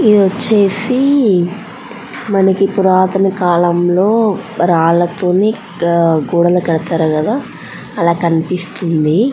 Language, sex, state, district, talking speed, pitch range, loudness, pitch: Telugu, female, Andhra Pradesh, Anantapur, 70 wpm, 170-215 Hz, -13 LUFS, 185 Hz